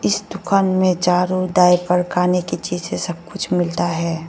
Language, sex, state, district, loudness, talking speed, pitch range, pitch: Hindi, female, Arunachal Pradesh, Lower Dibang Valley, -18 LUFS, 170 wpm, 175-185 Hz, 180 Hz